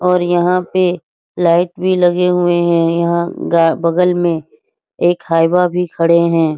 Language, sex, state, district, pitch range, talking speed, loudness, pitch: Hindi, female, Bihar, Araria, 170-180 Hz, 175 wpm, -14 LUFS, 175 Hz